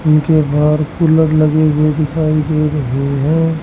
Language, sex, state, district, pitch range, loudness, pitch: Hindi, male, Haryana, Rohtak, 150-155 Hz, -13 LUFS, 155 Hz